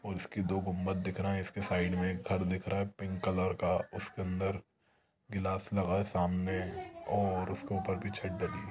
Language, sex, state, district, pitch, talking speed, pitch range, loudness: Hindi, male, Chhattisgarh, Sukma, 95 Hz, 215 wpm, 95-100 Hz, -35 LUFS